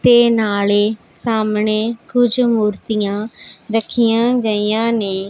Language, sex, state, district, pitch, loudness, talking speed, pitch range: Punjabi, female, Punjab, Pathankot, 220 Hz, -16 LUFS, 90 wpm, 210-235 Hz